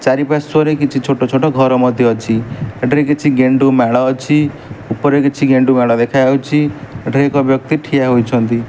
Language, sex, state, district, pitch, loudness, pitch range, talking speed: Odia, male, Odisha, Malkangiri, 135 Hz, -13 LUFS, 125-145 Hz, 145 wpm